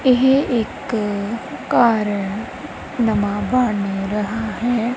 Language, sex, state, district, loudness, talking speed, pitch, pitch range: Punjabi, female, Punjab, Kapurthala, -20 LUFS, 85 wpm, 220 Hz, 205-240 Hz